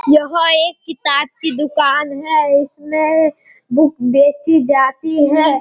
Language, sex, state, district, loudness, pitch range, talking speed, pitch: Hindi, female, Bihar, Kishanganj, -14 LUFS, 285-315 Hz, 120 wpm, 300 Hz